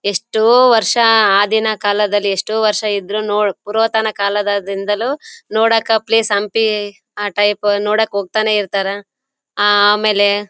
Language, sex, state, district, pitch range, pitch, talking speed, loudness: Kannada, female, Karnataka, Bellary, 205-220 Hz, 210 Hz, 120 wpm, -15 LUFS